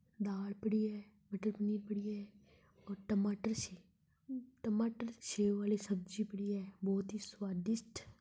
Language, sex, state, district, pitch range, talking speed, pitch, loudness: Marwari, male, Rajasthan, Nagaur, 200-215 Hz, 140 wpm, 205 Hz, -40 LUFS